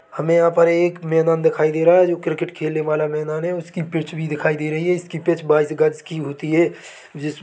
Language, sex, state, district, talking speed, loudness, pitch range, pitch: Hindi, male, Chhattisgarh, Bilaspur, 250 wpm, -19 LUFS, 155-170 Hz, 160 Hz